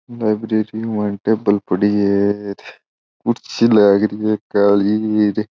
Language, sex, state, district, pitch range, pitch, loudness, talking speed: Marwari, male, Rajasthan, Churu, 100-110 Hz, 105 Hz, -17 LUFS, 120 wpm